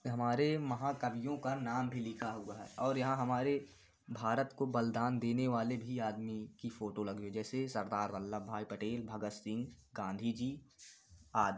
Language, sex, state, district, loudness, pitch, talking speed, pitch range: Hindi, male, Uttar Pradesh, Varanasi, -38 LUFS, 120 Hz, 165 wpm, 105-130 Hz